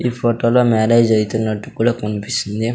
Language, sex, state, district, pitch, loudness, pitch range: Telugu, male, Andhra Pradesh, Sri Satya Sai, 115 Hz, -17 LUFS, 110-120 Hz